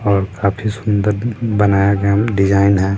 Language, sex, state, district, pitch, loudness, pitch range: Hindi, male, Bihar, Sitamarhi, 100 Hz, -16 LUFS, 100-105 Hz